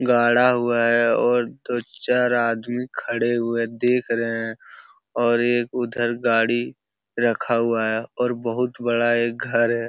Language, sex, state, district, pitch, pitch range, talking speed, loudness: Hindi, male, Uttar Pradesh, Hamirpur, 120 Hz, 115-120 Hz, 150 wpm, -21 LUFS